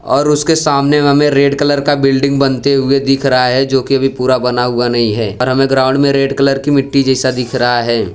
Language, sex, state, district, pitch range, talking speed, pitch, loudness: Hindi, male, Gujarat, Valsad, 125-140 Hz, 245 wpm, 135 Hz, -12 LUFS